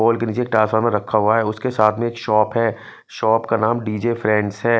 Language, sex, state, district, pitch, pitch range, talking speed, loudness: Hindi, male, Punjab, Fazilka, 110 Hz, 110-115 Hz, 235 wpm, -19 LUFS